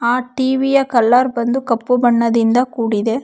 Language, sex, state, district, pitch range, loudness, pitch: Kannada, female, Karnataka, Bangalore, 235-260 Hz, -15 LUFS, 240 Hz